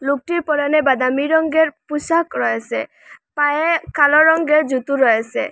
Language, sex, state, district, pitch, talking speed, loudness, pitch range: Bengali, female, Assam, Hailakandi, 295 Hz, 120 wpm, -17 LUFS, 280-320 Hz